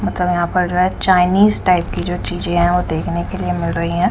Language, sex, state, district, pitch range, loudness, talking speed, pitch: Hindi, female, Punjab, Kapurthala, 170-180 Hz, -17 LUFS, 265 wpm, 180 Hz